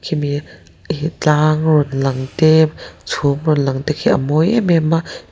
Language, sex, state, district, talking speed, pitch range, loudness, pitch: Mizo, female, Mizoram, Aizawl, 205 wpm, 140-160 Hz, -16 LUFS, 150 Hz